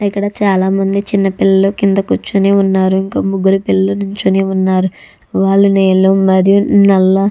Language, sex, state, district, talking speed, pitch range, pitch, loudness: Telugu, female, Andhra Pradesh, Chittoor, 150 wpm, 190-200 Hz, 195 Hz, -12 LUFS